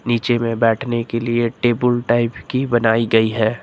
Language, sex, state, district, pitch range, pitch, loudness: Hindi, male, Uttar Pradesh, Lucknow, 115-120 Hz, 115 Hz, -18 LUFS